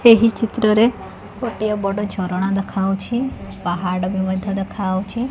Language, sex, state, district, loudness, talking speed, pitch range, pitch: Odia, female, Odisha, Khordha, -20 LUFS, 125 wpm, 190-225 Hz, 200 Hz